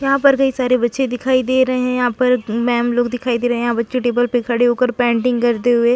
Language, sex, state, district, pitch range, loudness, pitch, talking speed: Hindi, female, Chhattisgarh, Sukma, 240-255 Hz, -17 LUFS, 245 Hz, 280 wpm